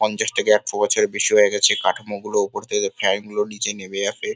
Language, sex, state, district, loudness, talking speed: Bengali, male, West Bengal, Kolkata, -20 LUFS, 205 wpm